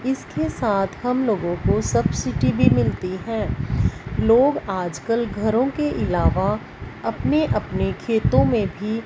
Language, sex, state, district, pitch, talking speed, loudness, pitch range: Hindi, female, Punjab, Fazilka, 225 Hz, 125 wpm, -21 LUFS, 195-250 Hz